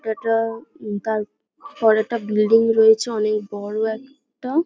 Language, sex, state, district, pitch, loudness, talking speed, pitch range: Bengali, female, West Bengal, Paschim Medinipur, 220 Hz, -20 LUFS, 115 wpm, 215-235 Hz